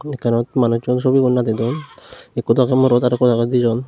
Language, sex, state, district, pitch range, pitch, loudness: Chakma, male, Tripura, Unakoti, 120-130 Hz, 125 Hz, -17 LUFS